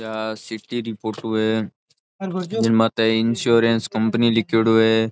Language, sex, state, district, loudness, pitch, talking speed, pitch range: Marwari, male, Rajasthan, Nagaur, -20 LUFS, 115 Hz, 130 wpm, 110-115 Hz